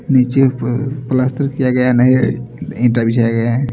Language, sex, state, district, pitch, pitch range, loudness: Hindi, male, Chhattisgarh, Raipur, 125 Hz, 120-135 Hz, -15 LUFS